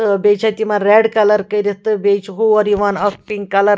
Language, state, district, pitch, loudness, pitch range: Kashmiri, Punjab, Kapurthala, 205 Hz, -15 LUFS, 205-215 Hz